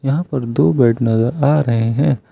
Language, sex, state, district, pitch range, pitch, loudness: Hindi, male, Uttar Pradesh, Lucknow, 115-145 Hz, 130 Hz, -16 LUFS